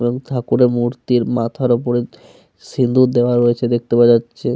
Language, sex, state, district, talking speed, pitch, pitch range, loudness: Bengali, male, Jharkhand, Sahebganj, 145 wpm, 120 Hz, 120-125 Hz, -16 LUFS